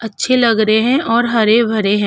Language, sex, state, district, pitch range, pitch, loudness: Hindi, female, Uttar Pradesh, Hamirpur, 215-235 Hz, 225 Hz, -13 LUFS